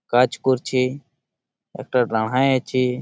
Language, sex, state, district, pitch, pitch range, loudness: Bengali, male, West Bengal, Malda, 130 Hz, 125-130 Hz, -21 LUFS